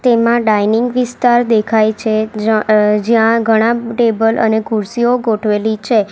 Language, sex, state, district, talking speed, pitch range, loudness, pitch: Gujarati, female, Gujarat, Valsad, 125 wpm, 215-235 Hz, -13 LUFS, 225 Hz